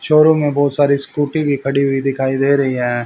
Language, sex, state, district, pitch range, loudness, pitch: Hindi, male, Haryana, Rohtak, 135-145 Hz, -15 LUFS, 140 Hz